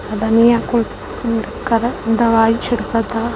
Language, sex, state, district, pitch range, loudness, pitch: Hindi, female, Uttar Pradesh, Varanasi, 225-235 Hz, -16 LUFS, 230 Hz